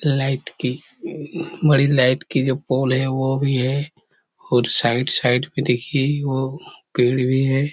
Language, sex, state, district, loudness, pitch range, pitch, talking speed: Hindi, male, Chhattisgarh, Korba, -20 LUFS, 130-145 Hz, 135 Hz, 165 wpm